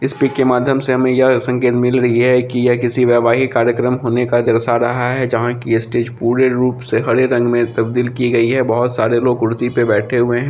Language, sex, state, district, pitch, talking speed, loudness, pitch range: Hindi, female, Bihar, Samastipur, 120 Hz, 240 wpm, -15 LUFS, 120-125 Hz